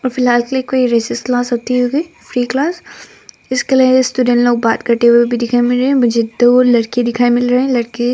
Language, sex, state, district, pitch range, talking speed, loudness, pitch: Hindi, female, Arunachal Pradesh, Papum Pare, 240-255 Hz, 230 wpm, -13 LUFS, 245 Hz